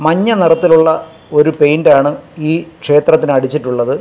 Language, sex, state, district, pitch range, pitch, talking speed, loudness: Malayalam, male, Kerala, Kasaragod, 145-165 Hz, 155 Hz, 105 wpm, -12 LUFS